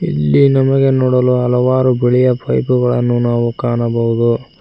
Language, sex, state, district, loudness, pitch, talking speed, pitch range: Kannada, male, Karnataka, Koppal, -14 LUFS, 125 Hz, 105 wpm, 120-130 Hz